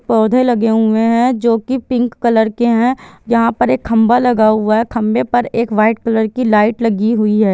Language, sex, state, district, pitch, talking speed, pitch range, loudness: Hindi, female, Chhattisgarh, Bilaspur, 230 Hz, 225 wpm, 220-240 Hz, -14 LUFS